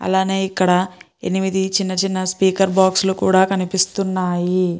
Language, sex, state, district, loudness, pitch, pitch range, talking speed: Telugu, female, Andhra Pradesh, Guntur, -18 LUFS, 190 Hz, 185-190 Hz, 110 wpm